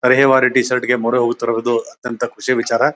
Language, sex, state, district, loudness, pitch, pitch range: Kannada, male, Karnataka, Bijapur, -16 LUFS, 125 Hz, 115-125 Hz